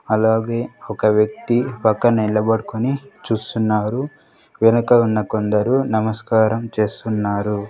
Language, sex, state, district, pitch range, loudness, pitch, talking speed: Telugu, male, Andhra Pradesh, Sri Satya Sai, 105-120 Hz, -19 LUFS, 110 Hz, 85 wpm